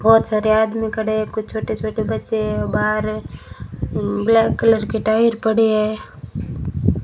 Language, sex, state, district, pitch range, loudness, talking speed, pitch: Hindi, female, Rajasthan, Bikaner, 140-220 Hz, -19 LUFS, 155 wpm, 215 Hz